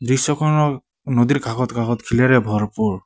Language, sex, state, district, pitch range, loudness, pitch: Assamese, male, Assam, Sonitpur, 115-140 Hz, -18 LUFS, 125 Hz